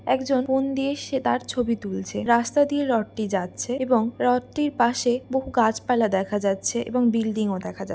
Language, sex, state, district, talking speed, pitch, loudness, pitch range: Bengali, female, West Bengal, Dakshin Dinajpur, 175 wpm, 235 Hz, -24 LUFS, 215-260 Hz